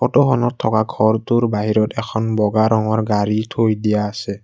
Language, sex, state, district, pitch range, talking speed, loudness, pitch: Assamese, male, Assam, Kamrup Metropolitan, 105-115 Hz, 150 wpm, -18 LUFS, 110 Hz